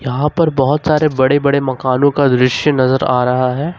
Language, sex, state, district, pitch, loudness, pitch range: Hindi, male, Jharkhand, Ranchi, 140 Hz, -14 LUFS, 130-150 Hz